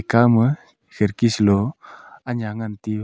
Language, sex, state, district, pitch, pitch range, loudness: Wancho, male, Arunachal Pradesh, Longding, 110 Hz, 105-120 Hz, -20 LUFS